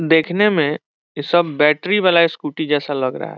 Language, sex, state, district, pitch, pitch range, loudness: Hindi, male, Bihar, Saran, 155 Hz, 150-175 Hz, -17 LUFS